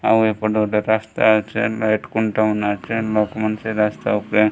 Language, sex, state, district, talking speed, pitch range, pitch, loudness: Odia, male, Odisha, Malkangiri, 185 wpm, 105-110 Hz, 110 Hz, -19 LUFS